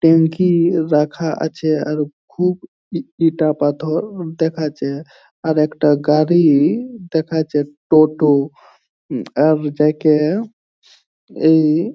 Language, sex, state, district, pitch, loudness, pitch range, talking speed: Bengali, male, West Bengal, Jhargram, 155 Hz, -17 LUFS, 150-165 Hz, 105 wpm